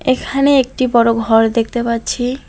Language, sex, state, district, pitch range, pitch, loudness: Bengali, female, West Bengal, Alipurduar, 230-260 Hz, 240 Hz, -14 LUFS